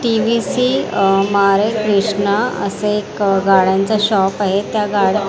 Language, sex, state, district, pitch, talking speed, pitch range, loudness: Marathi, female, Maharashtra, Mumbai Suburban, 200 Hz, 125 wpm, 195-215 Hz, -15 LUFS